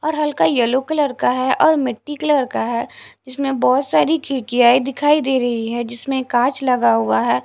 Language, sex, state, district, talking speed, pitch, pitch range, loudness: Hindi, female, Punjab, Fazilka, 200 wpm, 260 Hz, 240-290 Hz, -17 LUFS